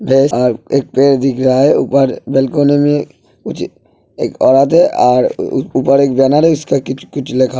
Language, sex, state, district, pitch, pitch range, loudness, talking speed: Hindi, male, Uttar Pradesh, Hamirpur, 135 Hz, 130-140 Hz, -12 LUFS, 175 wpm